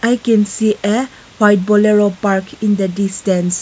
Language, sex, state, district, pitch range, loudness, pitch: English, female, Nagaland, Kohima, 195-215 Hz, -15 LUFS, 205 Hz